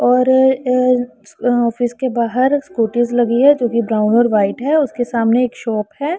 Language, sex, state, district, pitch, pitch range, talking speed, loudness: Hindi, female, Punjab, Pathankot, 245 Hz, 235-260 Hz, 175 wpm, -15 LUFS